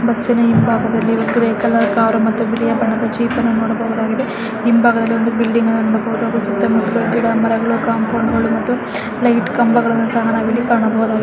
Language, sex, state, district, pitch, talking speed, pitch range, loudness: Kannada, female, Karnataka, Mysore, 230 Hz, 155 wpm, 225-230 Hz, -15 LUFS